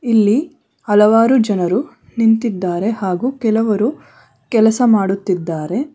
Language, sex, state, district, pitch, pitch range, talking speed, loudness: Kannada, female, Karnataka, Bangalore, 220 Hz, 195-235 Hz, 80 wpm, -15 LUFS